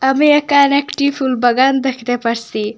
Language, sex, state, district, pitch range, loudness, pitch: Bengali, female, Assam, Hailakandi, 245-280 Hz, -14 LUFS, 265 Hz